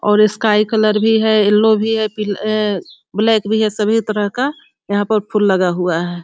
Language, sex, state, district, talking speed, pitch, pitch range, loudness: Hindi, female, Bihar, Sitamarhi, 220 wpm, 215 Hz, 205-220 Hz, -15 LUFS